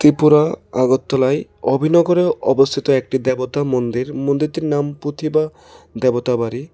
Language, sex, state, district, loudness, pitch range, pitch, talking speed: Bengali, male, Tripura, West Tripura, -17 LUFS, 130-150 Hz, 140 Hz, 105 wpm